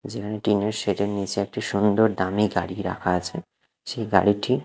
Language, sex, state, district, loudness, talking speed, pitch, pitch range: Bengali, male, Odisha, Khordha, -24 LUFS, 180 wpm, 100 Hz, 100-105 Hz